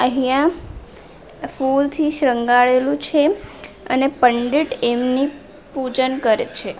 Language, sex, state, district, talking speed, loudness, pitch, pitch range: Gujarati, female, Gujarat, Valsad, 90 wpm, -18 LUFS, 265 Hz, 250-290 Hz